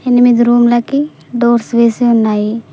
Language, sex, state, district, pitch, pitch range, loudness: Telugu, female, Telangana, Mahabubabad, 240 Hz, 235-245 Hz, -11 LUFS